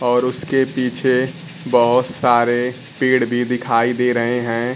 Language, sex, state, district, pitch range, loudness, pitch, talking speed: Hindi, male, Bihar, Kaimur, 120-130 Hz, -17 LUFS, 125 Hz, 140 wpm